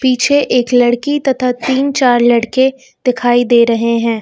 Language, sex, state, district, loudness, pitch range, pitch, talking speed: Hindi, female, Uttar Pradesh, Lucknow, -12 LUFS, 240-265 Hz, 250 Hz, 155 wpm